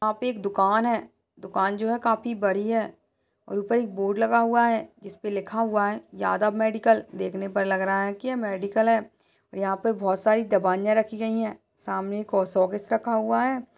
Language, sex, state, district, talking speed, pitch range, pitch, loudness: Hindi, female, Uttar Pradesh, Budaun, 215 wpm, 195-225 Hz, 215 Hz, -25 LUFS